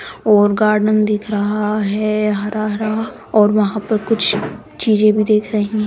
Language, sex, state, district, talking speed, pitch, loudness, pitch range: Hindi, female, Bihar, East Champaran, 155 wpm, 215 Hz, -16 LUFS, 210-215 Hz